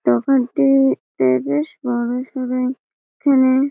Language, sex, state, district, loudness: Bengali, female, West Bengal, Malda, -18 LUFS